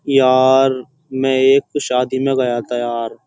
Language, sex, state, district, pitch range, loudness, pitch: Hindi, male, Uttar Pradesh, Jyotiba Phule Nagar, 125-135 Hz, -16 LUFS, 130 Hz